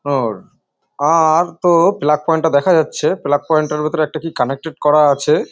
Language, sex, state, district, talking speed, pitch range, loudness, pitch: Bengali, male, West Bengal, North 24 Parganas, 185 wpm, 150-165 Hz, -15 LUFS, 155 Hz